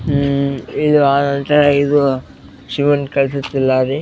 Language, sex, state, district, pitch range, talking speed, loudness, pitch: Kannada, male, Karnataka, Bellary, 135-145 Hz, 90 wpm, -15 LUFS, 140 Hz